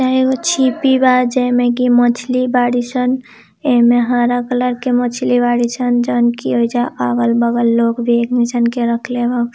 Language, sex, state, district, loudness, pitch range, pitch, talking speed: Hindi, female, Bihar, Gopalganj, -15 LUFS, 235-250 Hz, 245 Hz, 165 wpm